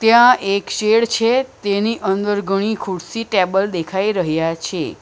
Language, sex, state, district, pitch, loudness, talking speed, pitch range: Gujarati, female, Gujarat, Valsad, 200 Hz, -18 LUFS, 145 wpm, 190-225 Hz